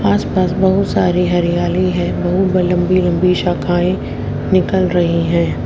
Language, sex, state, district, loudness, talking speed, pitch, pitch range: Hindi, female, Haryana, Jhajjar, -15 LUFS, 140 wpm, 180 Hz, 170-185 Hz